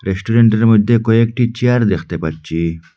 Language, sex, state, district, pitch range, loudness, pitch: Bengali, male, Assam, Hailakandi, 85-115 Hz, -14 LUFS, 110 Hz